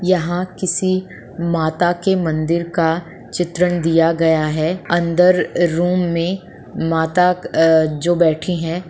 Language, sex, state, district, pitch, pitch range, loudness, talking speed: Hindi, female, Jharkhand, Sahebganj, 170 Hz, 165-180 Hz, -17 LUFS, 120 wpm